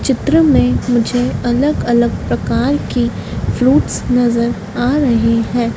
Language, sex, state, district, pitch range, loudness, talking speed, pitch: Hindi, female, Madhya Pradesh, Dhar, 235-250 Hz, -14 LUFS, 125 wpm, 240 Hz